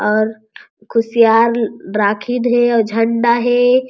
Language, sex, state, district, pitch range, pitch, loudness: Chhattisgarhi, female, Chhattisgarh, Jashpur, 220-240 Hz, 230 Hz, -15 LUFS